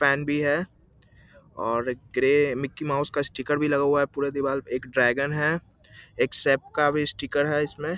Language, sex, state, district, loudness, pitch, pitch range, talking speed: Hindi, male, Bihar, Lakhisarai, -25 LUFS, 145 Hz, 135-150 Hz, 205 wpm